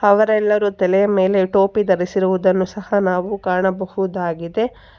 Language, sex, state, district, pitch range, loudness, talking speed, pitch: Kannada, female, Karnataka, Bangalore, 185-205 Hz, -18 LUFS, 95 wpm, 195 Hz